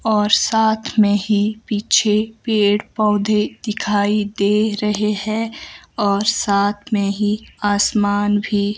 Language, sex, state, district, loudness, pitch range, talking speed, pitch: Hindi, male, Himachal Pradesh, Shimla, -18 LUFS, 205-215 Hz, 115 wpm, 210 Hz